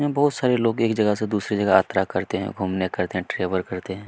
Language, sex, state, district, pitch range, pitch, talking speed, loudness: Hindi, male, Chhattisgarh, Kabirdham, 95-110 Hz, 100 Hz, 265 wpm, -23 LUFS